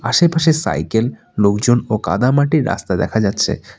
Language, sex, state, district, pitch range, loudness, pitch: Bengali, male, West Bengal, Alipurduar, 100-145 Hz, -16 LUFS, 115 Hz